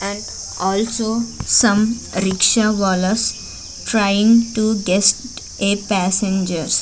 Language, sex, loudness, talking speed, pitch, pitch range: English, female, -17 LUFS, 80 wpm, 205 Hz, 190-220 Hz